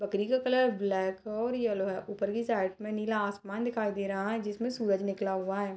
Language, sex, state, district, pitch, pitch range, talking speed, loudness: Hindi, female, Bihar, Purnia, 205 Hz, 195-225 Hz, 230 wpm, -32 LUFS